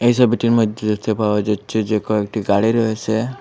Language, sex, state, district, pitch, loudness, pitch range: Bengali, male, Assam, Hailakandi, 110 Hz, -18 LUFS, 105-115 Hz